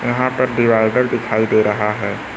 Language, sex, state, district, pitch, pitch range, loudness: Hindi, male, Uttar Pradesh, Lucknow, 110 Hz, 105-120 Hz, -16 LUFS